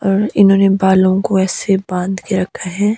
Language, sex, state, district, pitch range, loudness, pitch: Hindi, male, Himachal Pradesh, Shimla, 190-200 Hz, -14 LUFS, 195 Hz